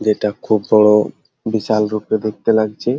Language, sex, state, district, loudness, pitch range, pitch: Bengali, male, West Bengal, Jalpaiguri, -16 LUFS, 105-110 Hz, 110 Hz